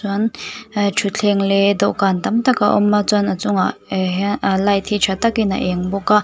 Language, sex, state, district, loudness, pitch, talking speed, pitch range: Mizo, female, Mizoram, Aizawl, -17 LUFS, 205 Hz, 230 wpm, 195-210 Hz